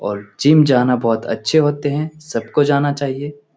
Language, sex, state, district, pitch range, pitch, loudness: Hindi, male, Bihar, Lakhisarai, 115-145 Hz, 140 Hz, -17 LUFS